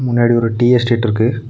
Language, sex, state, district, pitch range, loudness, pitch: Tamil, male, Tamil Nadu, Nilgiris, 115-120 Hz, -14 LUFS, 120 Hz